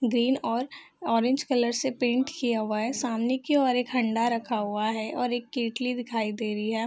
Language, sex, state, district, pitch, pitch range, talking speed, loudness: Hindi, female, Bihar, Gopalganj, 240 Hz, 225-255 Hz, 210 wpm, -27 LUFS